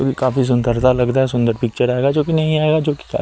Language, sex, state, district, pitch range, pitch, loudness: Hindi, male, Chandigarh, Chandigarh, 125-150 Hz, 130 Hz, -17 LUFS